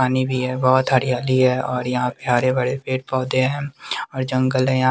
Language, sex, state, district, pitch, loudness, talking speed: Hindi, male, Bihar, West Champaran, 130 Hz, -20 LUFS, 220 wpm